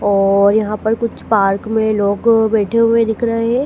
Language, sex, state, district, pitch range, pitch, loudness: Hindi, female, Madhya Pradesh, Dhar, 205-230 Hz, 220 Hz, -15 LUFS